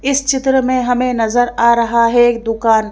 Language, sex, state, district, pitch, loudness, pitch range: Hindi, female, Madhya Pradesh, Bhopal, 240 Hz, -14 LUFS, 230-255 Hz